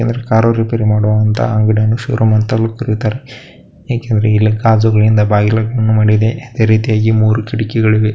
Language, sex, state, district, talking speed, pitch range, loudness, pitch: Kannada, male, Karnataka, Bellary, 140 wpm, 110-115 Hz, -13 LUFS, 110 Hz